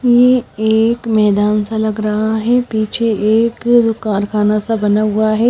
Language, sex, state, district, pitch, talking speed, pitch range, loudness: Hindi, female, Himachal Pradesh, Shimla, 220 Hz, 150 wpm, 210-230 Hz, -14 LUFS